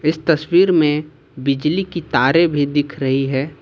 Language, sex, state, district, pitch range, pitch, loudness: Hindi, male, Jharkhand, Ranchi, 140-165 Hz, 150 Hz, -17 LUFS